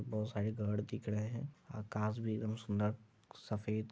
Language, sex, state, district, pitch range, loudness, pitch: Hindi, male, Bihar, Madhepura, 105-110 Hz, -40 LUFS, 110 Hz